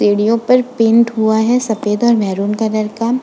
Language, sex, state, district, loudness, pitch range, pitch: Hindi, female, Uttar Pradesh, Budaun, -14 LUFS, 210-235 Hz, 220 Hz